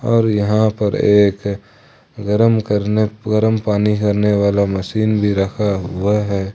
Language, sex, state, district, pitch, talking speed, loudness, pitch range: Hindi, male, Jharkhand, Ranchi, 105 Hz, 135 wpm, -16 LUFS, 100-110 Hz